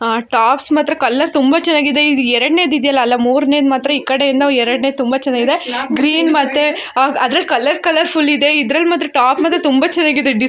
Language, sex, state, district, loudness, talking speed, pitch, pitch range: Kannada, female, Karnataka, Dharwad, -13 LUFS, 165 wpm, 285 Hz, 260-305 Hz